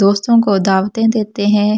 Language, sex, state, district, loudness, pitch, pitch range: Hindi, female, Delhi, New Delhi, -14 LUFS, 210 Hz, 200-220 Hz